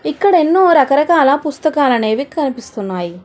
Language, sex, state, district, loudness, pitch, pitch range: Telugu, female, Telangana, Hyderabad, -13 LUFS, 280 Hz, 235-315 Hz